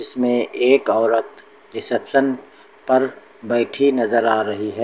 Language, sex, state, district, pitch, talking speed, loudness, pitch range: Hindi, male, Uttar Pradesh, Lucknow, 120 Hz, 125 wpm, -18 LUFS, 115-130 Hz